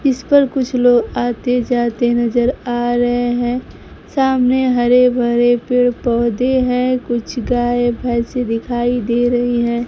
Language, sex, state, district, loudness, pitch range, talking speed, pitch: Hindi, male, Bihar, Kaimur, -16 LUFS, 240-250 Hz, 140 wpm, 245 Hz